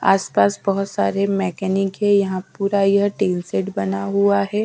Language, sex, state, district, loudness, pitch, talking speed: Hindi, female, Bihar, Patna, -19 LUFS, 195 Hz, 165 wpm